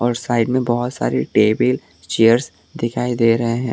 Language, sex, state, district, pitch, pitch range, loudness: Hindi, male, Tripura, West Tripura, 120 Hz, 115-120 Hz, -18 LUFS